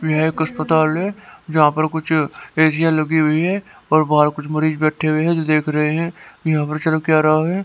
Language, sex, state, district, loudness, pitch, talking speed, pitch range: Hindi, male, Haryana, Rohtak, -18 LUFS, 155 Hz, 220 wpm, 155-160 Hz